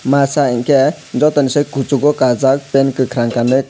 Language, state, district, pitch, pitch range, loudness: Kokborok, Tripura, West Tripura, 135 Hz, 130-145 Hz, -14 LUFS